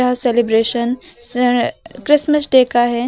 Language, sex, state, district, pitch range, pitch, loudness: Hindi, female, Uttar Pradesh, Lucknow, 240-260 Hz, 245 Hz, -15 LUFS